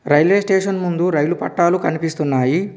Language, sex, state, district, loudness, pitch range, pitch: Telugu, male, Telangana, Komaram Bheem, -17 LUFS, 150-190 Hz, 170 Hz